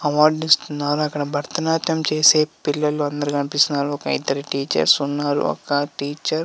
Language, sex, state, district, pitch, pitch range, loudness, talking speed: Telugu, male, Andhra Pradesh, Visakhapatnam, 145 Hz, 145-155 Hz, -20 LUFS, 130 wpm